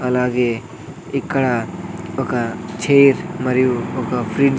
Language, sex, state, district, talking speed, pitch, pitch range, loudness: Telugu, male, Andhra Pradesh, Sri Satya Sai, 90 wpm, 125 Hz, 125-140 Hz, -19 LUFS